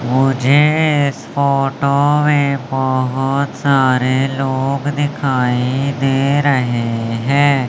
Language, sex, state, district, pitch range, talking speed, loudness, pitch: Hindi, male, Madhya Pradesh, Umaria, 130-140 Hz, 85 wpm, -15 LUFS, 135 Hz